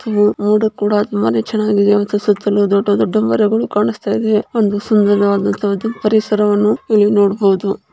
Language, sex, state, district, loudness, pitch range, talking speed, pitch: Kannada, female, Karnataka, Chamarajanagar, -15 LUFS, 205-215 Hz, 115 wpm, 210 Hz